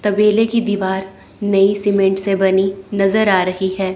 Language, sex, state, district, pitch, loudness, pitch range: Hindi, female, Chandigarh, Chandigarh, 195 Hz, -16 LUFS, 190-205 Hz